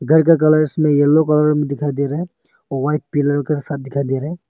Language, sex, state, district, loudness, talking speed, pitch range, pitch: Hindi, male, Arunachal Pradesh, Longding, -17 LUFS, 255 wpm, 140-155 Hz, 150 Hz